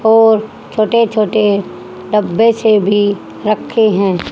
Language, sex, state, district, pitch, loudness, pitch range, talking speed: Hindi, female, Haryana, Jhajjar, 215 Hz, -13 LUFS, 205-225 Hz, 110 wpm